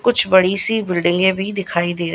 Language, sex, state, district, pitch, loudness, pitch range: Hindi, female, Gujarat, Gandhinagar, 190 Hz, -16 LUFS, 175-200 Hz